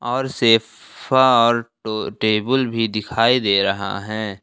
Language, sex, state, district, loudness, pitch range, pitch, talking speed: Hindi, male, Jharkhand, Ranchi, -18 LUFS, 110-125 Hz, 115 Hz, 135 wpm